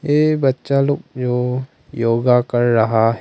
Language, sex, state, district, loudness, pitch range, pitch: Hindi, male, Arunachal Pradesh, Longding, -17 LUFS, 120-140 Hz, 125 Hz